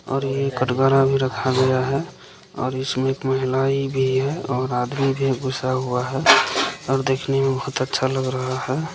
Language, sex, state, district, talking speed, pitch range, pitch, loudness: Hindi, male, Bihar, Supaul, 195 wpm, 130-135 Hz, 130 Hz, -21 LUFS